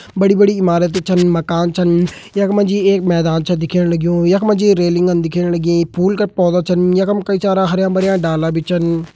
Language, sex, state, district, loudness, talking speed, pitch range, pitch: Hindi, male, Uttarakhand, Tehri Garhwal, -14 LUFS, 190 wpm, 170-195 Hz, 180 Hz